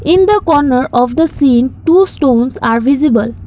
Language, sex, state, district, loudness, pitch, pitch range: English, female, Assam, Kamrup Metropolitan, -11 LUFS, 275 Hz, 245-325 Hz